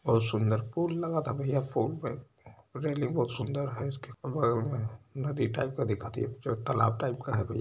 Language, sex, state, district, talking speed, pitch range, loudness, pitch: Hindi, male, Uttar Pradesh, Varanasi, 195 wpm, 115-140 Hz, -32 LUFS, 130 Hz